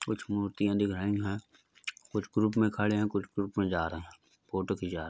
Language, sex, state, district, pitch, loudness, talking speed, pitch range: Hindi, male, Uttar Pradesh, Budaun, 100 Hz, -32 LUFS, 235 wpm, 95-105 Hz